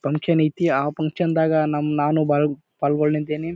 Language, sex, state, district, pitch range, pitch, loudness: Kannada, male, Karnataka, Bijapur, 150-160 Hz, 150 Hz, -21 LUFS